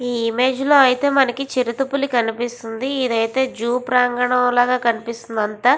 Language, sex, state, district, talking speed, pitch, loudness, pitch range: Telugu, female, Andhra Pradesh, Visakhapatnam, 155 wpm, 245 Hz, -18 LUFS, 235-260 Hz